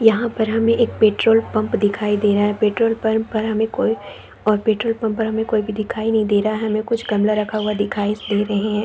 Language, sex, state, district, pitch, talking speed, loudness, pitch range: Hindi, female, Chhattisgarh, Raigarh, 215 Hz, 225 wpm, -19 LUFS, 210-225 Hz